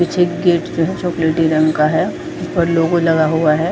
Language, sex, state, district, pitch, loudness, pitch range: Hindi, female, Jharkhand, Jamtara, 165 Hz, -16 LUFS, 160-175 Hz